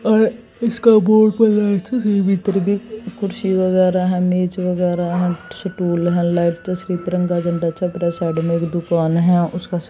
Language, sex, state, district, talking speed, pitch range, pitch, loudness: Hindi, female, Haryana, Jhajjar, 115 wpm, 175-205 Hz, 180 Hz, -18 LUFS